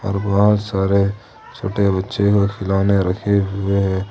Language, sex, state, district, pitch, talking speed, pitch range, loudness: Hindi, male, Jharkhand, Ranchi, 100 Hz, 130 wpm, 95-100 Hz, -18 LUFS